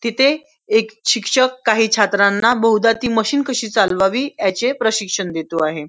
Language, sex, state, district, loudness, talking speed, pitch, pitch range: Marathi, female, Maharashtra, Nagpur, -17 LUFS, 130 wpm, 225 Hz, 200-250 Hz